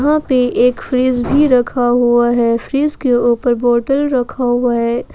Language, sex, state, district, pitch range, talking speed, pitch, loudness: Hindi, female, Jharkhand, Ranchi, 240-260 Hz, 175 wpm, 245 Hz, -14 LUFS